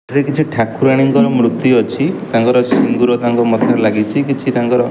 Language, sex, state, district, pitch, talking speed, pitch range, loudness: Odia, male, Odisha, Khordha, 125 Hz, 145 wpm, 115-135 Hz, -13 LUFS